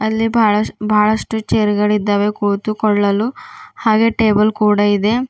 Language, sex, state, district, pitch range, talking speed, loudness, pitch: Kannada, female, Karnataka, Bidar, 210-225 Hz, 115 wpm, -15 LUFS, 215 Hz